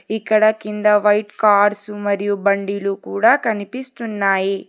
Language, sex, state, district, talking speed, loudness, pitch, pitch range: Telugu, female, Telangana, Hyderabad, 100 wpm, -17 LUFS, 210 Hz, 200-220 Hz